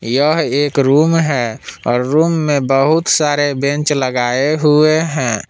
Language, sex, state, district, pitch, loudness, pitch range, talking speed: Hindi, male, Jharkhand, Palamu, 145 Hz, -14 LUFS, 135-155 Hz, 140 wpm